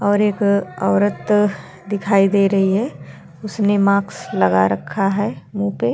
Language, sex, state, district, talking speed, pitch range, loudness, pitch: Hindi, female, Uttar Pradesh, Hamirpur, 150 wpm, 190-205 Hz, -18 LUFS, 200 Hz